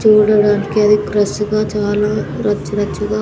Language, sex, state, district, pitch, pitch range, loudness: Telugu, female, Andhra Pradesh, Sri Satya Sai, 210 Hz, 205-215 Hz, -15 LUFS